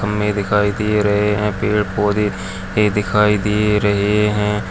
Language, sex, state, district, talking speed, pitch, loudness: Hindi, male, Chhattisgarh, Jashpur, 155 wpm, 105 Hz, -17 LUFS